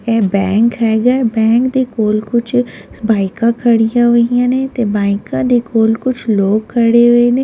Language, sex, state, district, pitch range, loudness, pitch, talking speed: Punjabi, female, Delhi, New Delhi, 220-240 Hz, -13 LUFS, 230 Hz, 170 wpm